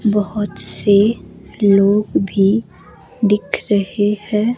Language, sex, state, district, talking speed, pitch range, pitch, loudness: Hindi, female, Himachal Pradesh, Shimla, 90 wpm, 200-210 Hz, 210 Hz, -16 LUFS